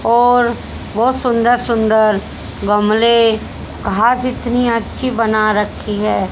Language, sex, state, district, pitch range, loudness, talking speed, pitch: Hindi, female, Haryana, Jhajjar, 215-245 Hz, -15 LUFS, 105 wpm, 230 Hz